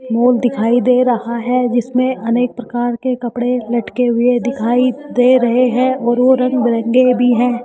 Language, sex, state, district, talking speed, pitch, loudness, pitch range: Hindi, female, Rajasthan, Jaipur, 170 wpm, 245 Hz, -15 LUFS, 240-250 Hz